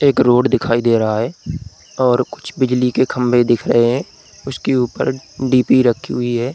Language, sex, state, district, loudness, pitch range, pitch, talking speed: Hindi, male, Uttar Pradesh, Budaun, -16 LUFS, 120-130 Hz, 125 Hz, 185 wpm